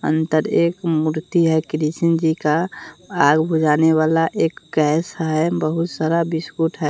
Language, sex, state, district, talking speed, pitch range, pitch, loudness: Hindi, female, Bihar, West Champaran, 150 wpm, 155-165 Hz, 160 Hz, -19 LUFS